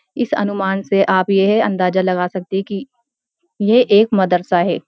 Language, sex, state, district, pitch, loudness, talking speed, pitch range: Hindi, female, Uttarakhand, Uttarkashi, 195 Hz, -16 LUFS, 170 wpm, 185-220 Hz